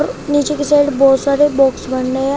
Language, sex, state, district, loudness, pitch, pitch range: Hindi, female, Uttar Pradesh, Shamli, -14 LUFS, 280 Hz, 270-290 Hz